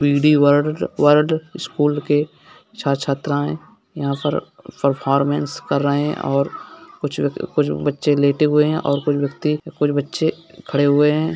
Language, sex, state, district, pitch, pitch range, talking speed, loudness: Hindi, male, Bihar, Gopalganj, 145 Hz, 140-150 Hz, 150 wpm, -19 LUFS